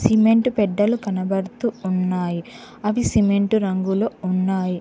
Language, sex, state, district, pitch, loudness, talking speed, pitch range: Telugu, female, Telangana, Mahabubabad, 200 Hz, -21 LUFS, 100 wpm, 185-220 Hz